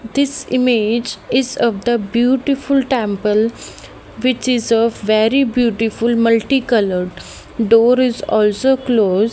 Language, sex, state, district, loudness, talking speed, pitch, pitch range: English, female, Haryana, Jhajjar, -16 LUFS, 115 wpm, 235 Hz, 220-255 Hz